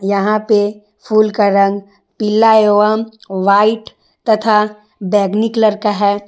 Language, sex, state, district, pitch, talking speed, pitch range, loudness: Hindi, female, Jharkhand, Garhwa, 210 Hz, 125 wpm, 205-215 Hz, -14 LUFS